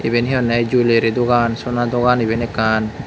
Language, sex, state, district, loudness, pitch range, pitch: Chakma, male, Tripura, West Tripura, -17 LUFS, 115-120 Hz, 120 Hz